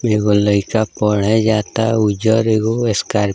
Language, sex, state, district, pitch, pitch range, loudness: Bhojpuri, male, Bihar, East Champaran, 110 Hz, 105-110 Hz, -16 LUFS